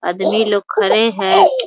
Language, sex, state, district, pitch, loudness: Hindi, female, Bihar, Muzaffarpur, 220 Hz, -14 LUFS